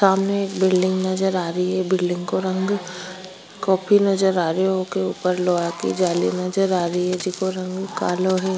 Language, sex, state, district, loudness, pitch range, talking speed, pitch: Rajasthani, female, Rajasthan, Churu, -21 LUFS, 180-190 Hz, 110 wpm, 185 Hz